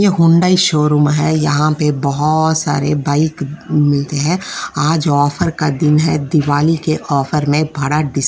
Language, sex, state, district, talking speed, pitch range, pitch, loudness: Hindi, female, Uttar Pradesh, Jyotiba Phule Nagar, 165 wpm, 145-160 Hz, 150 Hz, -14 LUFS